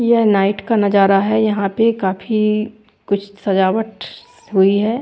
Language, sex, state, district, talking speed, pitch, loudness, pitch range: Hindi, female, Chandigarh, Chandigarh, 145 wpm, 210 Hz, -16 LUFS, 195-220 Hz